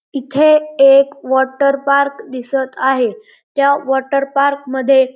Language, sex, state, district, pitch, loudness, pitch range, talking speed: Marathi, male, Maharashtra, Pune, 275 Hz, -14 LUFS, 265-280 Hz, 115 wpm